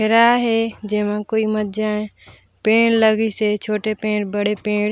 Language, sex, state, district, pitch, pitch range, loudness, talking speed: Chhattisgarhi, female, Chhattisgarh, Raigarh, 215 Hz, 210-220 Hz, -18 LUFS, 160 wpm